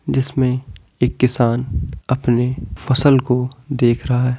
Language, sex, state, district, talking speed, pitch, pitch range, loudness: Hindi, male, Bihar, Bhagalpur, 125 wpm, 125 Hz, 120-130 Hz, -18 LUFS